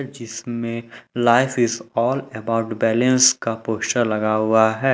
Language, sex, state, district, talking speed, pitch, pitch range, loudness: Hindi, male, Jharkhand, Ranchi, 135 wpm, 115 Hz, 110-125 Hz, -19 LUFS